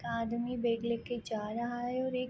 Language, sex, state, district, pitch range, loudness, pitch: Hindi, female, Bihar, Darbhanga, 230-245 Hz, -35 LUFS, 235 Hz